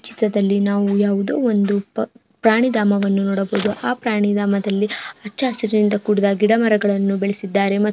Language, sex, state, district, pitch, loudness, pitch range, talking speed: Kannada, female, Karnataka, Chamarajanagar, 205 Hz, -18 LUFS, 200-220 Hz, 120 wpm